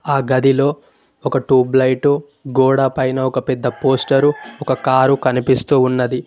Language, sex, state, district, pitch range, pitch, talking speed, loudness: Telugu, male, Telangana, Mahabubabad, 130-140 Hz, 130 Hz, 125 wpm, -16 LUFS